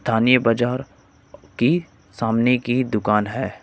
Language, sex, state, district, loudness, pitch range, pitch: Hindi, male, Uttar Pradesh, Lucknow, -20 LUFS, 105-125 Hz, 115 Hz